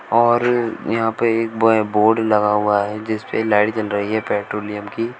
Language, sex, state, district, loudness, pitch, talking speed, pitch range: Hindi, male, Uttar Pradesh, Shamli, -18 LUFS, 110 Hz, 185 wpm, 105-115 Hz